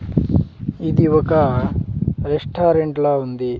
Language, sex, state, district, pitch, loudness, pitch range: Telugu, male, Andhra Pradesh, Sri Satya Sai, 145 Hz, -18 LUFS, 115-155 Hz